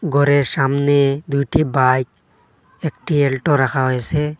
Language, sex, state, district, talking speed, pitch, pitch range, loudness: Bengali, male, Assam, Hailakandi, 120 wpm, 140 Hz, 135-145 Hz, -17 LUFS